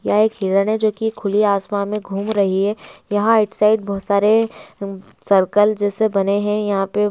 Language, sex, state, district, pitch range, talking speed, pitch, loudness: Hindi, female, West Bengal, Purulia, 200-215 Hz, 195 wpm, 205 Hz, -18 LUFS